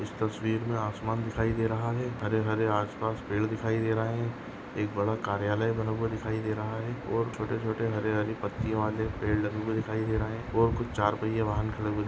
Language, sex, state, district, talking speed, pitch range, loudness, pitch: Hindi, male, Goa, North and South Goa, 235 wpm, 105-115 Hz, -30 LUFS, 110 Hz